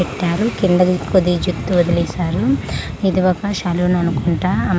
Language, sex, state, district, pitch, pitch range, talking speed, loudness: Telugu, female, Andhra Pradesh, Manyam, 180 Hz, 170-185 Hz, 125 wpm, -17 LUFS